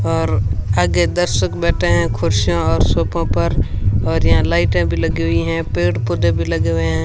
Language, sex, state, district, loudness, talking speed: Hindi, female, Rajasthan, Bikaner, -17 LUFS, 185 wpm